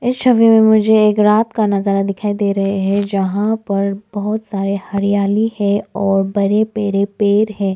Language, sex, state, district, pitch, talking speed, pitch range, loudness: Hindi, female, Arunachal Pradesh, Lower Dibang Valley, 205 Hz, 170 wpm, 200-215 Hz, -15 LUFS